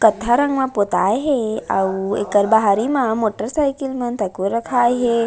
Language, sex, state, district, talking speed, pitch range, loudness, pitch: Chhattisgarhi, female, Chhattisgarh, Raigarh, 170 wpm, 205-250 Hz, -18 LUFS, 225 Hz